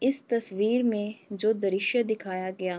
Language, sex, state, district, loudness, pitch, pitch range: Hindi, female, Uttar Pradesh, Varanasi, -28 LUFS, 210 Hz, 195-235 Hz